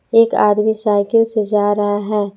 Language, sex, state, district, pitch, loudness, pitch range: Hindi, female, Jharkhand, Palamu, 210 Hz, -15 LUFS, 205-220 Hz